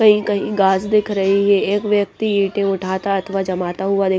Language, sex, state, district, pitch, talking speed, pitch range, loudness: Hindi, female, Punjab, Pathankot, 200 Hz, 200 wpm, 195-205 Hz, -18 LUFS